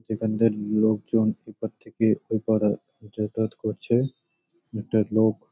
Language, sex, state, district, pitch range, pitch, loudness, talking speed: Bengali, male, West Bengal, Malda, 110-115 Hz, 110 Hz, -25 LUFS, 100 wpm